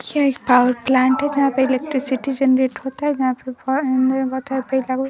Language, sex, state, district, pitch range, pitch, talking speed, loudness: Hindi, female, Bihar, Vaishali, 260-270 Hz, 265 Hz, 210 wpm, -19 LUFS